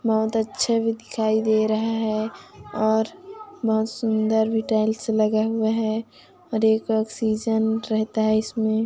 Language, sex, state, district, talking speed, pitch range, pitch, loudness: Hindi, female, Chhattisgarh, Kabirdham, 120 wpm, 220-225 Hz, 220 Hz, -23 LUFS